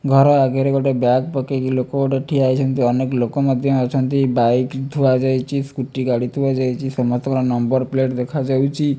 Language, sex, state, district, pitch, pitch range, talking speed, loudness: Odia, male, Odisha, Malkangiri, 130 Hz, 130-135 Hz, 160 wpm, -18 LUFS